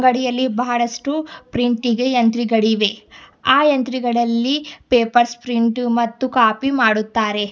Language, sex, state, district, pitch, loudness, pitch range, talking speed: Kannada, female, Karnataka, Bidar, 240 Hz, -18 LUFS, 230-255 Hz, 90 wpm